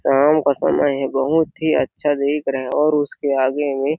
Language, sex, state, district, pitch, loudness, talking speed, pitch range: Hindi, male, Chhattisgarh, Sarguja, 145 Hz, -18 LUFS, 225 wpm, 135-150 Hz